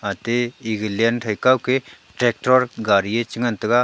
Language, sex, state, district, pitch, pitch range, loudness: Wancho, male, Arunachal Pradesh, Longding, 120 Hz, 110-125 Hz, -20 LUFS